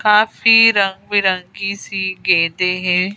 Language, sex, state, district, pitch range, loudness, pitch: Hindi, female, Madhya Pradesh, Bhopal, 185-205 Hz, -15 LUFS, 195 Hz